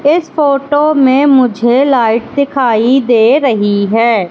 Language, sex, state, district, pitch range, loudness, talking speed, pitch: Hindi, female, Madhya Pradesh, Katni, 230-280 Hz, -10 LUFS, 125 wpm, 260 Hz